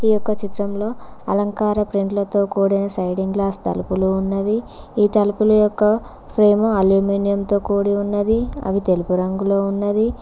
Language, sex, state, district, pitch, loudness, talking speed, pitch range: Telugu, female, Telangana, Mahabubabad, 200 Hz, -18 LUFS, 135 wpm, 195-210 Hz